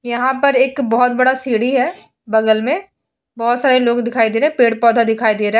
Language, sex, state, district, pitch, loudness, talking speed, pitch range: Hindi, female, Uttar Pradesh, Etah, 240 Hz, -15 LUFS, 225 wpm, 230-260 Hz